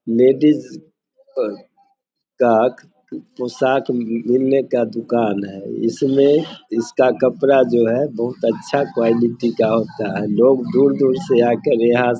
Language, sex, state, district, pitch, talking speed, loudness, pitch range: Hindi, male, Bihar, Samastipur, 125 Hz, 125 wpm, -17 LUFS, 115-140 Hz